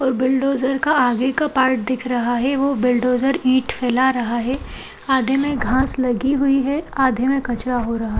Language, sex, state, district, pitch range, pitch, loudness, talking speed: Hindi, female, Uttar Pradesh, Jalaun, 250-270 Hz, 260 Hz, -18 LUFS, 195 wpm